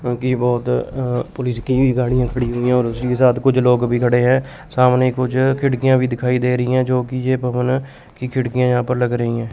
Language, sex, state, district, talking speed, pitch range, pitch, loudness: Hindi, male, Chandigarh, Chandigarh, 220 wpm, 125-130 Hz, 125 Hz, -18 LUFS